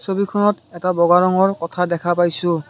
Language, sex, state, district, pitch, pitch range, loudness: Assamese, male, Assam, Kamrup Metropolitan, 180 Hz, 170-195 Hz, -18 LUFS